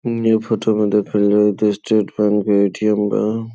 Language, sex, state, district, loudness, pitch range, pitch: Bhojpuri, male, Uttar Pradesh, Gorakhpur, -17 LUFS, 105-110 Hz, 105 Hz